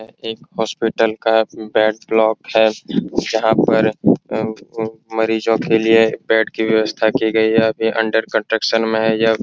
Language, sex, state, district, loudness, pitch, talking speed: Hindi, male, Bihar, Supaul, -17 LUFS, 110 Hz, 160 wpm